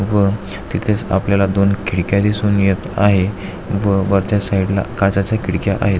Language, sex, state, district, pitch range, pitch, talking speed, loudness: Marathi, male, Maharashtra, Aurangabad, 95-100 Hz, 100 Hz, 150 wpm, -17 LUFS